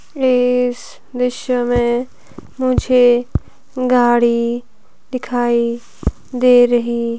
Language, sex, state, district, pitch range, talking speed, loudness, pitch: Hindi, female, Himachal Pradesh, Shimla, 240-250 Hz, 65 wpm, -16 LUFS, 245 Hz